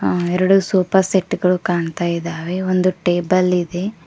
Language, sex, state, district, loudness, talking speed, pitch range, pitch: Kannada, female, Karnataka, Koppal, -18 LUFS, 135 wpm, 175-185 Hz, 180 Hz